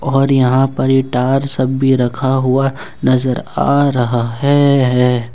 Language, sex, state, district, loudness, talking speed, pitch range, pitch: Hindi, male, Jharkhand, Ranchi, -14 LUFS, 170 wpm, 125-135 Hz, 130 Hz